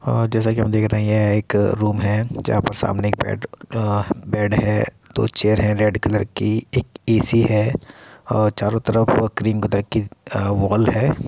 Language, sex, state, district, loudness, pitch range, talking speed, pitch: Hindi, male, Uttar Pradesh, Muzaffarnagar, -20 LUFS, 105-115 Hz, 215 wpm, 110 Hz